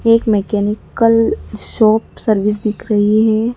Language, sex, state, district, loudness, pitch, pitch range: Hindi, female, Madhya Pradesh, Dhar, -15 LUFS, 215 Hz, 210-230 Hz